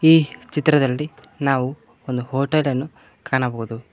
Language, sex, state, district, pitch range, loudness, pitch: Kannada, male, Karnataka, Koppal, 130-155 Hz, -21 LUFS, 135 Hz